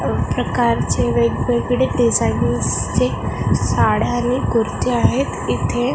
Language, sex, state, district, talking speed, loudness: Marathi, female, Maharashtra, Gondia, 90 wpm, -18 LUFS